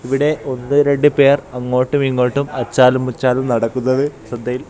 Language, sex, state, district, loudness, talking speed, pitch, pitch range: Malayalam, male, Kerala, Kasaragod, -16 LUFS, 115 wpm, 130 Hz, 125-140 Hz